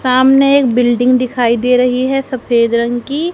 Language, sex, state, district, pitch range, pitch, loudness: Hindi, female, Haryana, Charkhi Dadri, 240-265 Hz, 250 Hz, -12 LUFS